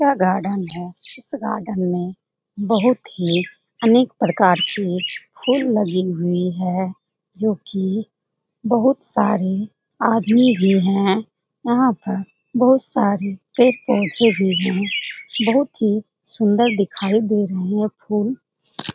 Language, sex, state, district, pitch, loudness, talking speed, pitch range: Hindi, female, Bihar, Jamui, 205 Hz, -19 LUFS, 120 wpm, 185-230 Hz